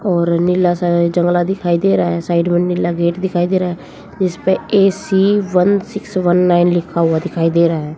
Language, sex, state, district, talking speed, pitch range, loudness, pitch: Hindi, female, Haryana, Jhajjar, 210 wpm, 170-185 Hz, -15 LUFS, 175 Hz